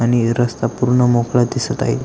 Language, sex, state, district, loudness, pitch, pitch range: Marathi, male, Maharashtra, Aurangabad, -17 LUFS, 120 Hz, 115-125 Hz